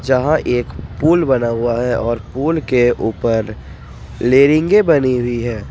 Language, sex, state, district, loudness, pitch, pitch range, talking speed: Hindi, male, Jharkhand, Ranchi, -15 LUFS, 125 Hz, 120-140 Hz, 160 wpm